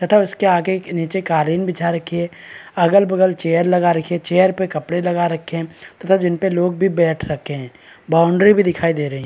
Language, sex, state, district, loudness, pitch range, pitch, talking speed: Hindi, male, Bihar, Araria, -17 LUFS, 165-185 Hz, 175 Hz, 220 wpm